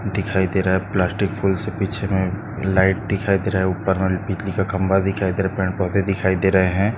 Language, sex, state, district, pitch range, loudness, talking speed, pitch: Hindi, male, Maharashtra, Chandrapur, 95-100 Hz, -20 LUFS, 240 wpm, 95 Hz